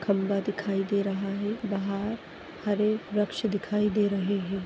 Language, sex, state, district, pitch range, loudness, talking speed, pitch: Hindi, female, Maharashtra, Aurangabad, 195-210 Hz, -29 LUFS, 155 wpm, 200 Hz